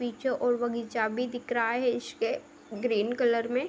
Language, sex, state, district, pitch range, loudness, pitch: Hindi, female, Uttar Pradesh, Budaun, 230-250 Hz, -29 LUFS, 240 Hz